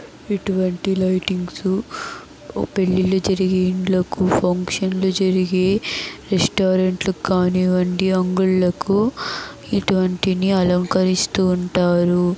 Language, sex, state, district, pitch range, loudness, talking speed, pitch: Telugu, male, Andhra Pradesh, Chittoor, 180-190 Hz, -19 LUFS, 75 wpm, 185 Hz